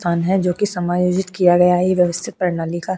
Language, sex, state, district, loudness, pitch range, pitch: Hindi, female, Goa, North and South Goa, -17 LUFS, 175-185 Hz, 180 Hz